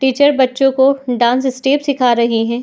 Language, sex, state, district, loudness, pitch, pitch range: Hindi, female, Uttar Pradesh, Muzaffarnagar, -14 LUFS, 265 Hz, 240-275 Hz